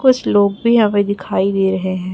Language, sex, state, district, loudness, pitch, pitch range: Hindi, female, Chhattisgarh, Raipur, -15 LUFS, 200 Hz, 190-215 Hz